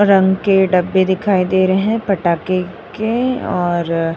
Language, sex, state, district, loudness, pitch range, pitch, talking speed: Hindi, female, Uttar Pradesh, Jyotiba Phule Nagar, -16 LUFS, 180-200 Hz, 190 Hz, 160 wpm